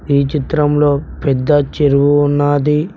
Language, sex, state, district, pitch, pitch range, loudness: Telugu, male, Telangana, Mahabubabad, 145 Hz, 140-150 Hz, -14 LUFS